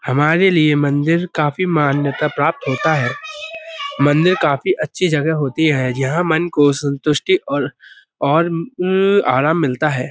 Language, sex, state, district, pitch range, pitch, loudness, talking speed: Hindi, male, Uttar Pradesh, Budaun, 145-180 Hz, 155 Hz, -16 LUFS, 135 wpm